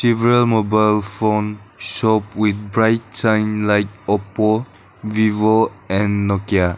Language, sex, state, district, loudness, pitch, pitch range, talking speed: English, male, Nagaland, Dimapur, -17 LUFS, 105 Hz, 100-110 Hz, 105 wpm